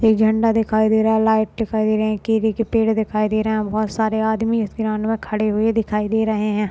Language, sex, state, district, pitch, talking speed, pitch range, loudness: Hindi, male, Maharashtra, Nagpur, 220 Hz, 240 wpm, 215-220 Hz, -19 LUFS